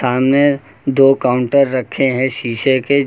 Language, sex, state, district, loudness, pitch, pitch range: Hindi, male, Uttar Pradesh, Lucknow, -15 LUFS, 135 Hz, 125-135 Hz